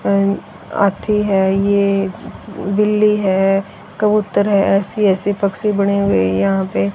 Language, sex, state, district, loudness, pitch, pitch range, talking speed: Hindi, female, Haryana, Jhajjar, -16 LUFS, 200 Hz, 190-205 Hz, 120 wpm